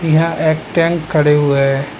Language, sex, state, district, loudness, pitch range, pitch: Hindi, male, Assam, Hailakandi, -14 LUFS, 145-165 Hz, 155 Hz